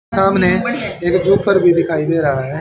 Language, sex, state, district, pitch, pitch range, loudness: Hindi, male, Haryana, Charkhi Dadri, 180 Hz, 165-195 Hz, -15 LUFS